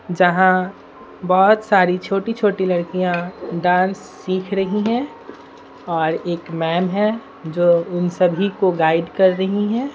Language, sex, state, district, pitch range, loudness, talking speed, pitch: Hindi, female, Bihar, Patna, 175-200 Hz, -18 LUFS, 135 wpm, 185 Hz